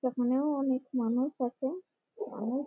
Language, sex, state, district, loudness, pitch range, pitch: Bengali, female, West Bengal, Malda, -32 LUFS, 250-285 Hz, 260 Hz